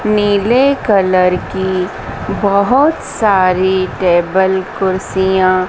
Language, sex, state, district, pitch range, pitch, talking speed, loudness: Hindi, female, Madhya Pradesh, Dhar, 185-205 Hz, 190 Hz, 75 wpm, -13 LUFS